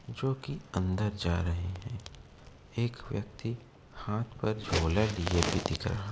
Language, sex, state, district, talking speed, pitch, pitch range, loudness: Hindi, male, Uttar Pradesh, Etah, 145 wpm, 105 Hz, 85-115 Hz, -33 LUFS